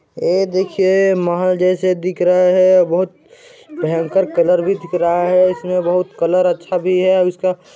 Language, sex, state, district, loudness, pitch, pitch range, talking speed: Chhattisgarhi, male, Chhattisgarh, Balrampur, -15 LUFS, 185 Hz, 180-185 Hz, 180 wpm